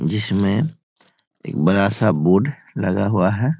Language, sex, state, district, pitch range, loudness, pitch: Hindi, male, Bihar, Sitamarhi, 95-130 Hz, -19 LUFS, 100 Hz